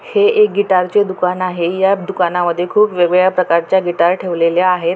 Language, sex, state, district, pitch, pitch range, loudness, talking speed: Marathi, female, Maharashtra, Pune, 185 Hz, 175-195 Hz, -14 LUFS, 155 wpm